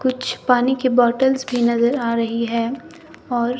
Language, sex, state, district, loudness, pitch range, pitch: Hindi, male, Himachal Pradesh, Shimla, -19 LUFS, 235-265 Hz, 250 Hz